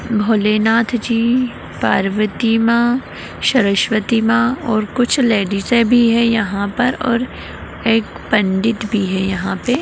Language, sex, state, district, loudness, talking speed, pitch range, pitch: Magahi, female, Bihar, Gaya, -16 LUFS, 120 wpm, 210-240 Hz, 225 Hz